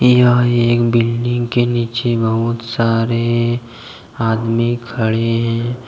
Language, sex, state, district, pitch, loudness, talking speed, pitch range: Hindi, male, Jharkhand, Deoghar, 120 Hz, -16 LUFS, 100 wpm, 115-120 Hz